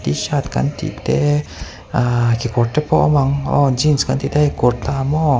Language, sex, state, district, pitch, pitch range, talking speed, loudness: Mizo, male, Mizoram, Aizawl, 135 Hz, 120-150 Hz, 200 wpm, -17 LUFS